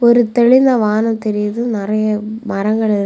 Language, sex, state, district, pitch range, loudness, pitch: Tamil, female, Tamil Nadu, Kanyakumari, 210-235 Hz, -15 LUFS, 220 Hz